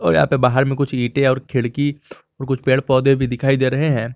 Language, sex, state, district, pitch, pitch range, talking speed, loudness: Hindi, male, Jharkhand, Garhwa, 135 Hz, 125-135 Hz, 260 wpm, -18 LUFS